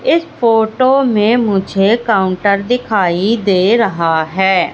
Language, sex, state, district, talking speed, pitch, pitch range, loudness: Hindi, female, Madhya Pradesh, Katni, 115 wpm, 210 Hz, 190-235 Hz, -13 LUFS